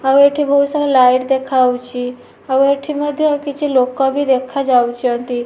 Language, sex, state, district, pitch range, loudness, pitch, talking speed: Odia, female, Odisha, Nuapada, 250-285 Hz, -15 LUFS, 265 Hz, 165 wpm